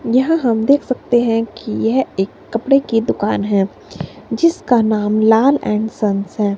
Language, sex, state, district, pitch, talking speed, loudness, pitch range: Hindi, female, Himachal Pradesh, Shimla, 225 Hz, 165 wpm, -16 LUFS, 210-255 Hz